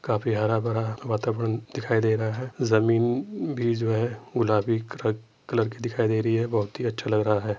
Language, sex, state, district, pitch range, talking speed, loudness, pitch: Hindi, male, Uttar Pradesh, Jyotiba Phule Nagar, 110-120 Hz, 215 wpm, -26 LUFS, 115 Hz